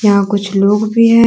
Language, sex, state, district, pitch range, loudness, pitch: Hindi, female, Jharkhand, Deoghar, 200-230 Hz, -12 LUFS, 205 Hz